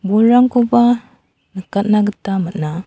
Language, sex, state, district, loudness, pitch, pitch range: Garo, female, Meghalaya, South Garo Hills, -15 LUFS, 210 Hz, 190-240 Hz